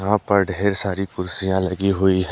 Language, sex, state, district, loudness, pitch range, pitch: Hindi, male, Jharkhand, Deoghar, -20 LUFS, 95-100 Hz, 95 Hz